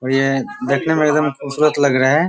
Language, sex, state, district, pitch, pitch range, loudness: Hindi, male, Bihar, Sitamarhi, 145 Hz, 135-155 Hz, -17 LUFS